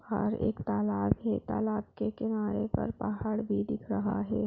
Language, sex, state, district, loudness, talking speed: Hindi, female, West Bengal, Purulia, -32 LUFS, 175 wpm